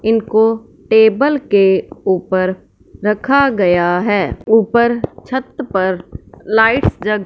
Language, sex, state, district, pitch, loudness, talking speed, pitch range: Hindi, male, Punjab, Fazilka, 215 Hz, -14 LUFS, 100 wpm, 190-230 Hz